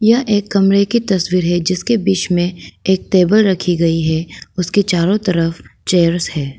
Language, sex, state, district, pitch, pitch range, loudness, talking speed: Hindi, female, Arunachal Pradesh, Lower Dibang Valley, 180 Hz, 175-200 Hz, -15 LUFS, 175 wpm